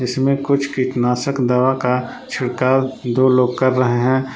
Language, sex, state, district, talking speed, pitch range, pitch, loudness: Hindi, male, Jharkhand, Palamu, 150 wpm, 125-130 Hz, 130 Hz, -17 LUFS